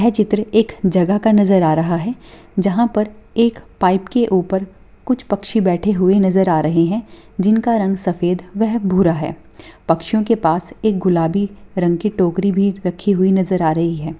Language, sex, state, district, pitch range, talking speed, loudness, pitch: Hindi, female, Bihar, Begusarai, 180-215 Hz, 180 wpm, -17 LUFS, 195 Hz